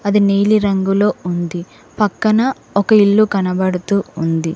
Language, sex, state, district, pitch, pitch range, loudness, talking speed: Telugu, female, Telangana, Mahabubabad, 200 Hz, 180-210 Hz, -15 LUFS, 105 wpm